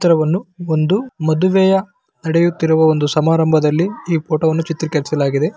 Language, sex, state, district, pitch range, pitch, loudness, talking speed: Kannada, male, Karnataka, Bellary, 155-180 Hz, 160 Hz, -16 LUFS, 120 wpm